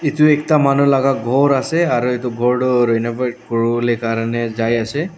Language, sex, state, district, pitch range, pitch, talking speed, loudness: Nagamese, male, Nagaland, Dimapur, 120-140 Hz, 125 Hz, 160 wpm, -16 LUFS